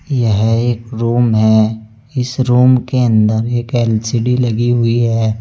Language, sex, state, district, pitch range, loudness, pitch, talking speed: Hindi, male, Uttar Pradesh, Saharanpur, 110-125 Hz, -14 LUFS, 115 Hz, 145 wpm